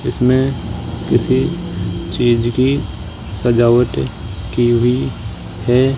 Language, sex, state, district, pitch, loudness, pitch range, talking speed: Hindi, male, Rajasthan, Jaipur, 120 Hz, -16 LUFS, 105-125 Hz, 80 wpm